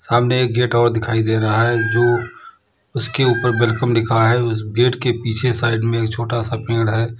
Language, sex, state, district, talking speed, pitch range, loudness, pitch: Hindi, male, Uttar Pradesh, Lalitpur, 210 wpm, 115-120 Hz, -17 LUFS, 120 Hz